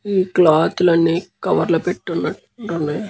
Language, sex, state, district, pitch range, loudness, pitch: Telugu, male, Andhra Pradesh, Guntur, 165-195 Hz, -18 LUFS, 175 Hz